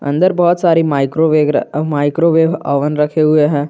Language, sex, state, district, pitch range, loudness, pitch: Hindi, male, Jharkhand, Garhwa, 145-165 Hz, -13 LUFS, 155 Hz